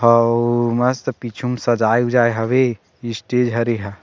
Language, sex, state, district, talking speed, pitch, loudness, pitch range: Chhattisgarhi, male, Chhattisgarh, Sarguja, 165 wpm, 120 Hz, -18 LUFS, 115-125 Hz